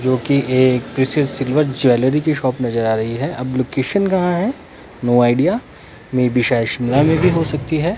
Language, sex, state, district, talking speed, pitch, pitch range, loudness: Hindi, male, Himachal Pradesh, Shimla, 195 wpm, 130 Hz, 120-150 Hz, -17 LUFS